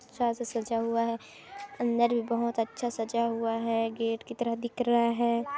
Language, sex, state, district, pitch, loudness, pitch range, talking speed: Hindi, female, Chhattisgarh, Kabirdham, 235 Hz, -30 LUFS, 230-240 Hz, 185 wpm